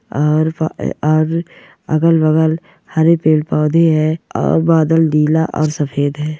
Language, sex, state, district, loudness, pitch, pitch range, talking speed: Hindi, male, Maharashtra, Solapur, -15 LUFS, 155 Hz, 150-160 Hz, 150 wpm